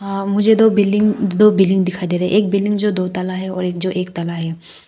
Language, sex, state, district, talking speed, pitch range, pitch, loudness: Hindi, female, Arunachal Pradesh, Papum Pare, 245 wpm, 180-205 Hz, 190 Hz, -16 LUFS